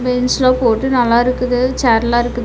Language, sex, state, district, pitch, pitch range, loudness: Tamil, female, Tamil Nadu, Nilgiris, 250 Hz, 240-255 Hz, -14 LUFS